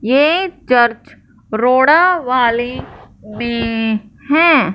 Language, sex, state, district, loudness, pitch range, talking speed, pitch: Hindi, male, Punjab, Fazilka, -14 LUFS, 230-300 Hz, 75 wpm, 245 Hz